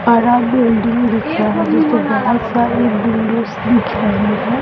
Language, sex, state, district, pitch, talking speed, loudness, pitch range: Hindi, female, Bihar, Sitamarhi, 230 Hz, 155 wpm, -15 LUFS, 210-240 Hz